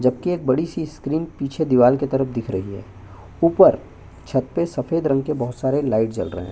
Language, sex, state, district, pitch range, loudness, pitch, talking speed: Hindi, male, Chhattisgarh, Bastar, 115-155 Hz, -20 LUFS, 135 Hz, 220 wpm